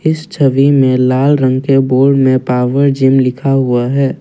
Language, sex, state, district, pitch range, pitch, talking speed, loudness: Hindi, male, Assam, Kamrup Metropolitan, 130-140 Hz, 135 Hz, 185 wpm, -11 LUFS